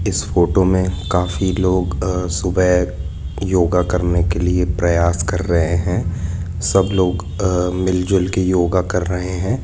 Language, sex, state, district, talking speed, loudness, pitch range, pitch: Hindi, male, Jharkhand, Jamtara, 150 wpm, -18 LUFS, 85-95 Hz, 90 Hz